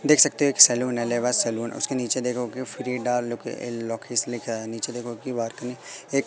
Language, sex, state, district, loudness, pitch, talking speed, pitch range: Hindi, female, Madhya Pradesh, Katni, -23 LUFS, 120 Hz, 170 wpm, 120-125 Hz